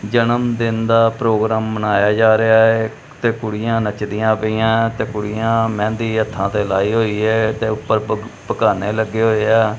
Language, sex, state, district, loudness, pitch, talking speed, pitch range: Punjabi, male, Punjab, Kapurthala, -17 LUFS, 110 Hz, 160 wpm, 110-115 Hz